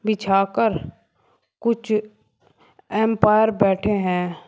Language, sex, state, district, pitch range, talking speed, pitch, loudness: Hindi, male, Uttar Pradesh, Shamli, 195-220 Hz, 80 wpm, 210 Hz, -20 LUFS